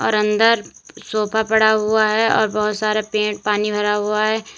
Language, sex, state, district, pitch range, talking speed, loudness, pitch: Hindi, female, Uttar Pradesh, Lalitpur, 210-220 Hz, 170 wpm, -18 LUFS, 215 Hz